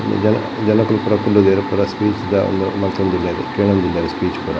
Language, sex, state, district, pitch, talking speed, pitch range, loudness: Tulu, male, Karnataka, Dakshina Kannada, 100 Hz, 155 wpm, 95-105 Hz, -17 LUFS